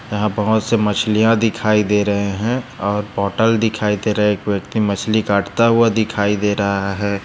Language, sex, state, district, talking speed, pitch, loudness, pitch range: Hindi, male, Maharashtra, Nagpur, 190 wpm, 105 Hz, -17 LUFS, 100-110 Hz